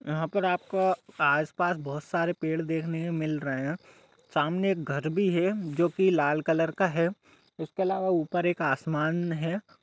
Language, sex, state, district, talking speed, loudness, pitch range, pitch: Hindi, male, Jharkhand, Sahebganj, 175 wpm, -28 LUFS, 155-185 Hz, 165 Hz